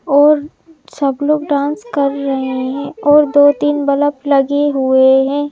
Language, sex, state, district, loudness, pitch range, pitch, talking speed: Hindi, male, Madhya Pradesh, Bhopal, -14 LUFS, 275-295 Hz, 285 Hz, 140 wpm